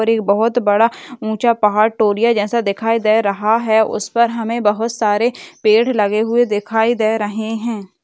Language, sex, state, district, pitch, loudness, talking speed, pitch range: Hindi, female, Rajasthan, Nagaur, 220 Hz, -16 LUFS, 165 wpm, 210-230 Hz